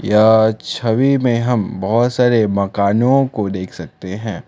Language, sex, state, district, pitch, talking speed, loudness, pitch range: Hindi, male, Assam, Kamrup Metropolitan, 110 Hz, 145 wpm, -16 LUFS, 100-120 Hz